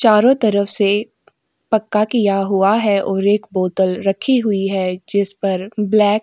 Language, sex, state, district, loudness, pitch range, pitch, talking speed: Hindi, female, Goa, North and South Goa, -17 LUFS, 195-215 Hz, 200 Hz, 165 wpm